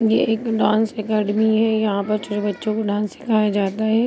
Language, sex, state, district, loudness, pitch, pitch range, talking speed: Hindi, female, Bihar, Begusarai, -20 LUFS, 215 Hz, 210-220 Hz, 205 wpm